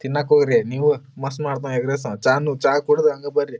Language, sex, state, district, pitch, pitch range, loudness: Kannada, male, Karnataka, Dharwad, 145 Hz, 135-150 Hz, -20 LUFS